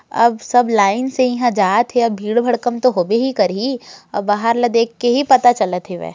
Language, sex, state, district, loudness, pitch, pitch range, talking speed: Hindi, female, Chhattisgarh, Raigarh, -16 LUFS, 235 Hz, 210-245 Hz, 215 wpm